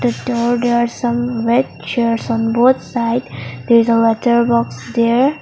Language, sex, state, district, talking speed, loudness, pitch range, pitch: English, female, Mizoram, Aizawl, 175 wpm, -16 LUFS, 230-240 Hz, 235 Hz